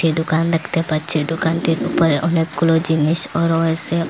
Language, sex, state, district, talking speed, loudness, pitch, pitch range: Bengali, female, Assam, Hailakandi, 130 wpm, -17 LUFS, 165 Hz, 160-165 Hz